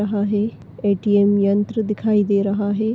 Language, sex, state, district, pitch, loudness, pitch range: Hindi, female, Uttar Pradesh, Deoria, 205 Hz, -19 LUFS, 200-210 Hz